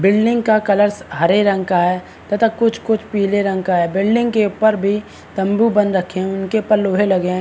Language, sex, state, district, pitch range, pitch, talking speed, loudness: Hindi, male, Maharashtra, Chandrapur, 190-215 Hz, 200 Hz, 220 wpm, -16 LUFS